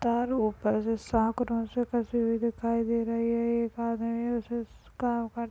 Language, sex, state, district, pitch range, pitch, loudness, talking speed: Hindi, female, Chhattisgarh, Bastar, 230-235 Hz, 235 Hz, -29 LUFS, 140 wpm